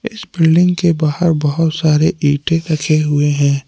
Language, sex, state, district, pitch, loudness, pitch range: Hindi, male, Jharkhand, Palamu, 155 Hz, -14 LUFS, 150-170 Hz